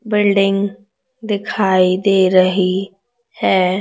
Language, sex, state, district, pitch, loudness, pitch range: Hindi, female, Chhattisgarh, Raipur, 195 Hz, -15 LUFS, 185-210 Hz